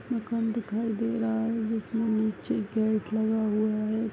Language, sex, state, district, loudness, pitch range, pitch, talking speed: Hindi, male, Bihar, Bhagalpur, -28 LUFS, 215-225 Hz, 220 Hz, 160 wpm